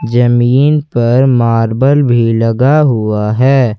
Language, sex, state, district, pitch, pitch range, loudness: Hindi, male, Jharkhand, Ranchi, 120 Hz, 115-135 Hz, -10 LUFS